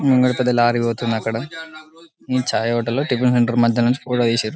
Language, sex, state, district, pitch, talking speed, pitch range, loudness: Telugu, male, Telangana, Karimnagar, 120 Hz, 170 wpm, 120-130 Hz, -19 LUFS